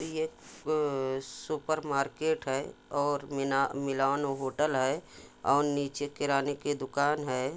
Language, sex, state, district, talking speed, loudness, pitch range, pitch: Hindi, male, Jharkhand, Sahebganj, 110 wpm, -31 LUFS, 135-145 Hz, 140 Hz